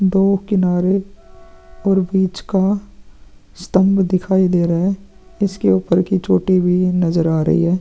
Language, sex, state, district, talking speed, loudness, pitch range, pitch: Hindi, male, Uttar Pradesh, Varanasi, 145 wpm, -17 LUFS, 170-195 Hz, 185 Hz